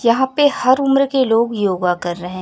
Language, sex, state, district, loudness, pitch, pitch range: Hindi, female, Chhattisgarh, Raipur, -16 LUFS, 235 Hz, 185-270 Hz